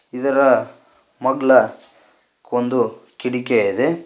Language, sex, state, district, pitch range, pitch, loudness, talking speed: Kannada, male, Karnataka, Koppal, 125-135 Hz, 125 Hz, -18 LUFS, 75 wpm